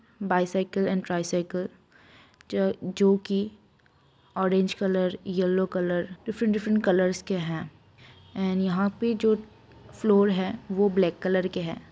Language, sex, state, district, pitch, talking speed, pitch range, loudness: Hindi, female, Uttar Pradesh, Budaun, 190 Hz, 125 wpm, 180-200 Hz, -26 LUFS